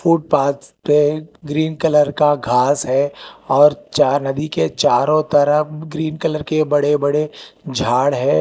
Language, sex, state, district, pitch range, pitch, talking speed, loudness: Hindi, male, Telangana, Hyderabad, 145-155 Hz, 150 Hz, 140 wpm, -17 LUFS